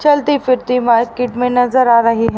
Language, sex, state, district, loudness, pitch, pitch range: Hindi, female, Haryana, Rohtak, -13 LUFS, 250 Hz, 235-255 Hz